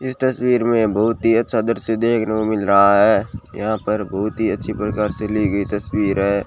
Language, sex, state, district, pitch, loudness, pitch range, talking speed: Hindi, male, Rajasthan, Bikaner, 110 Hz, -18 LUFS, 100-115 Hz, 215 wpm